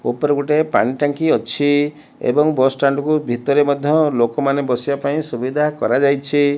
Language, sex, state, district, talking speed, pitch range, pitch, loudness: Odia, male, Odisha, Malkangiri, 145 wpm, 140-150 Hz, 145 Hz, -17 LUFS